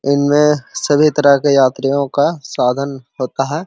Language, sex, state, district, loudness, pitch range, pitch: Hindi, male, Jharkhand, Sahebganj, -15 LUFS, 135-150 Hz, 140 Hz